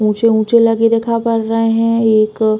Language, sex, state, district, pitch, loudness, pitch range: Bundeli, female, Uttar Pradesh, Hamirpur, 225 Hz, -13 LUFS, 220-230 Hz